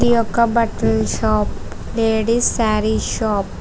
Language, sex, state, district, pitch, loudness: Telugu, female, Telangana, Hyderabad, 215 Hz, -18 LUFS